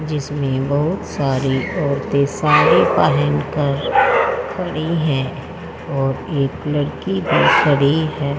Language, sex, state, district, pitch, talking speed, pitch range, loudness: Hindi, female, Haryana, Jhajjar, 145 Hz, 100 wpm, 135-155 Hz, -17 LUFS